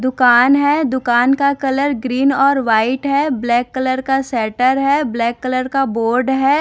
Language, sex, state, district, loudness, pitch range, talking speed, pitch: Hindi, female, Odisha, Nuapada, -15 LUFS, 245-275 Hz, 170 wpm, 260 Hz